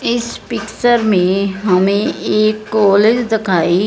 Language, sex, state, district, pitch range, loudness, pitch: Hindi, female, Punjab, Fazilka, 195-225 Hz, -14 LUFS, 210 Hz